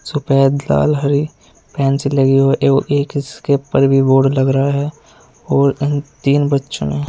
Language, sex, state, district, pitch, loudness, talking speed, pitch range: Hindi, male, Uttar Pradesh, Saharanpur, 140 Hz, -15 LUFS, 160 wpm, 135-145 Hz